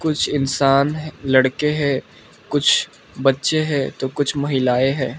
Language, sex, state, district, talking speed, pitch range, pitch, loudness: Hindi, male, Arunachal Pradesh, Lower Dibang Valley, 125 wpm, 130-150 Hz, 140 Hz, -19 LUFS